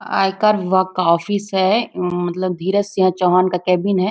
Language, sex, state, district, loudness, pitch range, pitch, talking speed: Hindi, female, Chhattisgarh, Bastar, -17 LUFS, 180-200 Hz, 185 Hz, 175 wpm